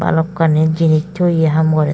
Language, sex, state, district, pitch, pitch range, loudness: Chakma, female, Tripura, Dhalai, 160 Hz, 155-165 Hz, -14 LUFS